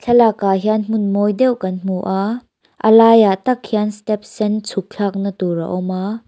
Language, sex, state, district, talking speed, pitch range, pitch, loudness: Mizo, female, Mizoram, Aizawl, 190 wpm, 195-225 Hz, 210 Hz, -16 LUFS